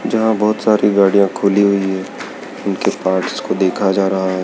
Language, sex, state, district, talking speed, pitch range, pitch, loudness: Hindi, male, Madhya Pradesh, Dhar, 190 wpm, 95-105 Hz, 100 Hz, -15 LUFS